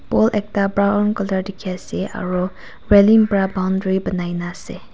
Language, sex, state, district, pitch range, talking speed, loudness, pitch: Nagamese, female, Nagaland, Kohima, 185-205 Hz, 135 wpm, -19 LUFS, 195 Hz